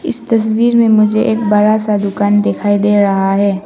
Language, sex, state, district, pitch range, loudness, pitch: Hindi, female, Arunachal Pradesh, Papum Pare, 205-220 Hz, -12 LUFS, 210 Hz